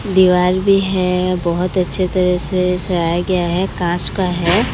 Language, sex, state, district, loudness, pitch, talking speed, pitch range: Hindi, female, Odisha, Sambalpur, -16 LUFS, 180 Hz, 165 wpm, 175-185 Hz